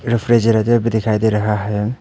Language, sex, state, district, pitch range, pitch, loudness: Hindi, male, Arunachal Pradesh, Papum Pare, 105-120 Hz, 110 Hz, -16 LUFS